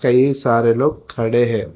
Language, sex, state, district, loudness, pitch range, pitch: Hindi, female, Telangana, Hyderabad, -15 LUFS, 115-135 Hz, 120 Hz